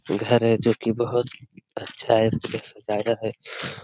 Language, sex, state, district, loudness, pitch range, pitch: Hindi, male, Bihar, Jamui, -24 LUFS, 110-120 Hz, 115 Hz